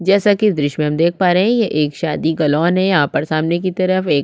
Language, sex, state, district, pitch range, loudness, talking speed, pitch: Hindi, female, Chhattisgarh, Sukma, 150-185 Hz, -16 LUFS, 325 wpm, 170 Hz